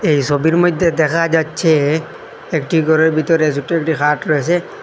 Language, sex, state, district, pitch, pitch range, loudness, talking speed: Bengali, male, Assam, Hailakandi, 160 Hz, 155-165 Hz, -15 LUFS, 150 wpm